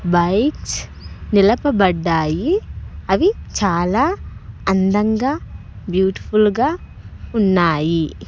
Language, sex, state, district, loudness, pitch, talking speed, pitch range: Telugu, male, Andhra Pradesh, Sri Satya Sai, -18 LUFS, 200 Hz, 60 wpm, 175-240 Hz